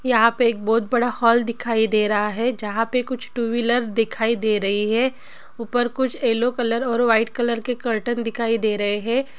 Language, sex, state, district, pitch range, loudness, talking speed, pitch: Hindi, female, Bihar, Gopalganj, 225-245 Hz, -21 LUFS, 205 wpm, 235 Hz